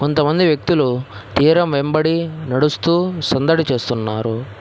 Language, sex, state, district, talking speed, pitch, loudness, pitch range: Telugu, male, Telangana, Hyderabad, 90 wpm, 145 Hz, -17 LUFS, 125-160 Hz